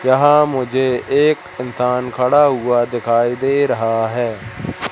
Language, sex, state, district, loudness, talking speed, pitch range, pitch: Hindi, male, Madhya Pradesh, Katni, -16 LUFS, 120 wpm, 120-140 Hz, 125 Hz